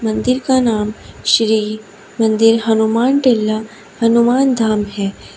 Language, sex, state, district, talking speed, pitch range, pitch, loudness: Hindi, female, Uttar Pradesh, Shamli, 110 wpm, 215-235 Hz, 220 Hz, -15 LUFS